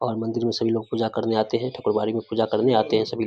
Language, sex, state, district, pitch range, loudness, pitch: Hindi, male, Bihar, Samastipur, 110-115 Hz, -23 LUFS, 115 Hz